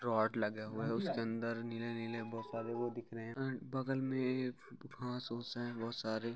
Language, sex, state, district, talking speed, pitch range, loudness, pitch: Hindi, male, Chhattisgarh, Raigarh, 215 wpm, 115-125 Hz, -40 LUFS, 115 Hz